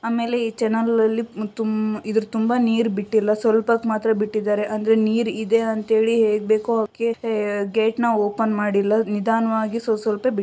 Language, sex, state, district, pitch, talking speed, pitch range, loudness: Kannada, female, Karnataka, Shimoga, 220 Hz, 165 wpm, 215-230 Hz, -21 LUFS